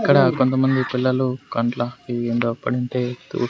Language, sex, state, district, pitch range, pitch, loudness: Telugu, male, Andhra Pradesh, Sri Satya Sai, 120-130 Hz, 125 Hz, -21 LUFS